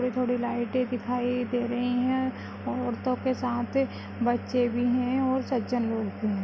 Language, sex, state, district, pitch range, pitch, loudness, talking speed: Kumaoni, female, Uttarakhand, Uttarkashi, 240-255 Hz, 245 Hz, -28 LUFS, 170 wpm